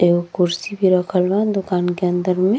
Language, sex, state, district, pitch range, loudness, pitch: Bhojpuri, female, Uttar Pradesh, Ghazipur, 175-195 Hz, -18 LUFS, 180 Hz